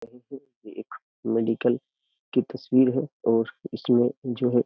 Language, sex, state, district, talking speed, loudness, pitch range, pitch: Hindi, male, Uttar Pradesh, Jyotiba Phule Nagar, 140 wpm, -25 LUFS, 115-130 Hz, 125 Hz